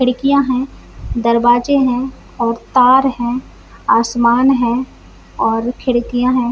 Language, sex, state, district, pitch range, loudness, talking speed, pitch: Hindi, female, Jharkhand, Jamtara, 240-260 Hz, -15 LUFS, 110 wpm, 245 Hz